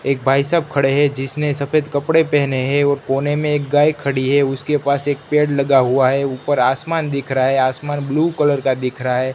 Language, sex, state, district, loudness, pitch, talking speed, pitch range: Hindi, male, Gujarat, Gandhinagar, -17 LUFS, 140 Hz, 230 wpm, 135-150 Hz